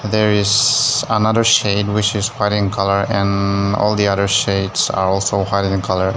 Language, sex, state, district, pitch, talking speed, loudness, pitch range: English, male, Nagaland, Dimapur, 100 Hz, 175 wpm, -16 LUFS, 100-105 Hz